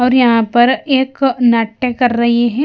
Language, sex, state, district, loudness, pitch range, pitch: Hindi, female, Himachal Pradesh, Shimla, -13 LUFS, 235-260 Hz, 245 Hz